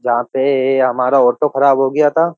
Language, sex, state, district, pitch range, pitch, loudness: Hindi, male, Uttar Pradesh, Jyotiba Phule Nagar, 125-145 Hz, 135 Hz, -14 LUFS